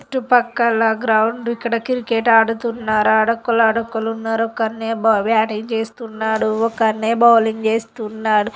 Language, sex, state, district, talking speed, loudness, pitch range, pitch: Telugu, female, Andhra Pradesh, Guntur, 110 wpm, -17 LUFS, 220-230 Hz, 225 Hz